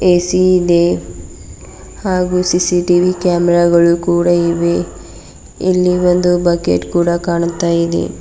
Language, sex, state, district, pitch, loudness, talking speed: Kannada, female, Karnataka, Bidar, 175 Hz, -13 LUFS, 100 wpm